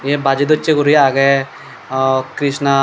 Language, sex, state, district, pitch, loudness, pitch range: Chakma, male, Tripura, Dhalai, 140 Hz, -14 LUFS, 135-145 Hz